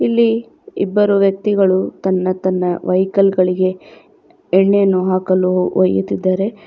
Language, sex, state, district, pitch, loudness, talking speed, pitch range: Kannada, female, Karnataka, Bidar, 185 Hz, -16 LUFS, 90 wpm, 185-195 Hz